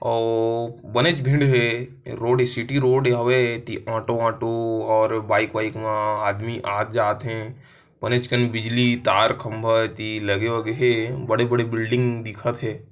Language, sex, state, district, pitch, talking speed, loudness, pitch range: Hindi, male, Chhattisgarh, Kabirdham, 115 Hz, 160 wpm, -22 LUFS, 110-125 Hz